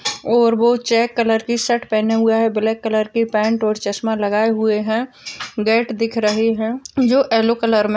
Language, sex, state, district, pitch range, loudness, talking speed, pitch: Hindi, female, Uttarakhand, Tehri Garhwal, 220-235 Hz, -17 LUFS, 205 wpm, 225 Hz